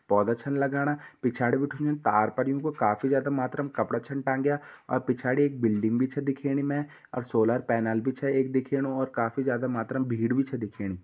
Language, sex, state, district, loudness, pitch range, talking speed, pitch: Garhwali, male, Uttarakhand, Uttarkashi, -28 LUFS, 115-140 Hz, 205 wpm, 130 Hz